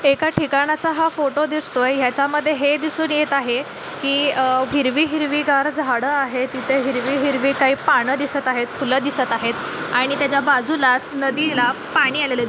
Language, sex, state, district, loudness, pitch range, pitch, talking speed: Marathi, female, Maharashtra, Chandrapur, -19 LUFS, 260-295 Hz, 275 Hz, 160 wpm